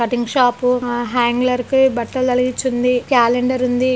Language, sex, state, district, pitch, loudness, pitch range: Telugu, female, Telangana, Karimnagar, 250 Hz, -17 LUFS, 240-255 Hz